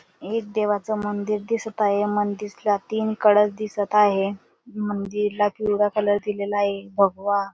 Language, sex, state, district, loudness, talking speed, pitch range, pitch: Marathi, male, Maharashtra, Dhule, -23 LUFS, 160 wpm, 205-210 Hz, 205 Hz